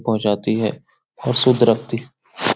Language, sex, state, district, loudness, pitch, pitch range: Hindi, male, Bihar, Supaul, -19 LUFS, 115 Hz, 110-120 Hz